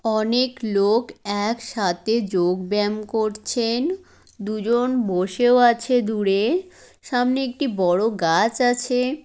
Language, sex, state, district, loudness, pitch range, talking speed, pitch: Bengali, female, West Bengal, Kolkata, -21 LUFS, 205-250 Hz, 110 wpm, 225 Hz